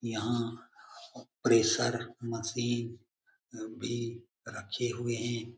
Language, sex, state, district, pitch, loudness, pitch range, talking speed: Hindi, male, Bihar, Jamui, 120 Hz, -32 LUFS, 115-120 Hz, 75 wpm